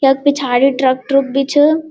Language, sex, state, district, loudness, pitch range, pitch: Garhwali, female, Uttarakhand, Uttarkashi, -14 LUFS, 265-285 Hz, 275 Hz